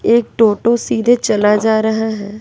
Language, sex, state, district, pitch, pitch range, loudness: Hindi, female, Bihar, West Champaran, 220 Hz, 215-230 Hz, -14 LUFS